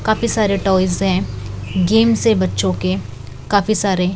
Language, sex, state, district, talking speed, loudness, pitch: Hindi, female, Chhattisgarh, Raipur, 145 wpm, -17 LUFS, 185 Hz